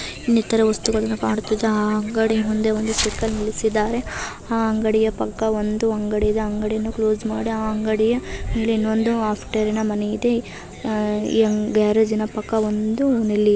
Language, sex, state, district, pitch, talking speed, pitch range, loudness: Kannada, female, Karnataka, Chamarajanagar, 220 Hz, 135 wpm, 215-225 Hz, -21 LUFS